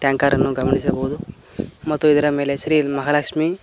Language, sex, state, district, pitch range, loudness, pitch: Kannada, male, Karnataka, Koppal, 140-155 Hz, -19 LUFS, 145 Hz